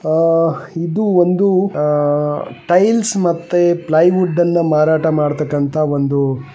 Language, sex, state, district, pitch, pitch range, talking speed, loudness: Kannada, male, Karnataka, Bellary, 165 Hz, 150-175 Hz, 110 wpm, -15 LUFS